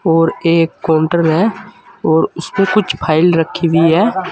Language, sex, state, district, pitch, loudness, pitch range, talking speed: Hindi, male, Uttar Pradesh, Saharanpur, 165 Hz, -14 LUFS, 165-195 Hz, 165 wpm